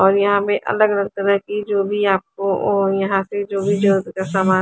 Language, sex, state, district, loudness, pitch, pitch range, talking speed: Hindi, female, Haryana, Charkhi Dadri, -18 LUFS, 200 Hz, 195-205 Hz, 245 wpm